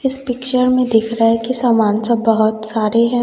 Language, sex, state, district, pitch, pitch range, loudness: Hindi, female, Bihar, West Champaran, 230 Hz, 225-250 Hz, -15 LUFS